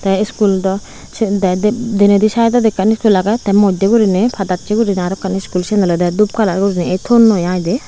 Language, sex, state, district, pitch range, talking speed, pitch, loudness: Chakma, female, Tripura, Unakoti, 190-215 Hz, 200 wpm, 200 Hz, -14 LUFS